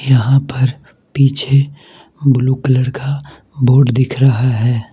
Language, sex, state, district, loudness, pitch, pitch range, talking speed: Hindi, male, Mizoram, Aizawl, -14 LUFS, 135 Hz, 130-140 Hz, 120 wpm